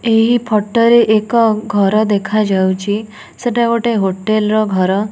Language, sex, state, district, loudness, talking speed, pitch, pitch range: Odia, female, Odisha, Nuapada, -14 LUFS, 130 wpm, 215 Hz, 205-230 Hz